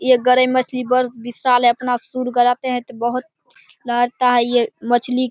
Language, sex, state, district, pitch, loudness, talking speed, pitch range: Hindi, male, Bihar, Begusarai, 250 Hz, -18 LUFS, 205 wpm, 240-255 Hz